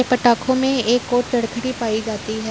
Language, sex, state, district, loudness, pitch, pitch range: Hindi, female, Uttar Pradesh, Jyotiba Phule Nagar, -19 LUFS, 240 Hz, 225-255 Hz